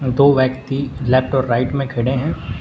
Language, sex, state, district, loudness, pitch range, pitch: Hindi, male, Uttar Pradesh, Saharanpur, -18 LUFS, 130-135 Hz, 130 Hz